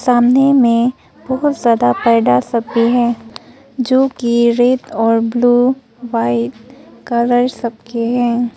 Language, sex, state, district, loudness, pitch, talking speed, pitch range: Hindi, female, Arunachal Pradesh, Papum Pare, -14 LUFS, 240 Hz, 110 wpm, 230-255 Hz